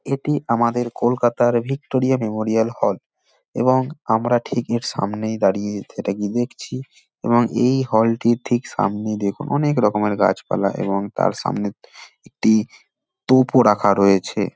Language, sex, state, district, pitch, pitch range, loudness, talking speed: Bengali, male, West Bengal, Dakshin Dinajpur, 115 Hz, 105-125 Hz, -20 LUFS, 130 wpm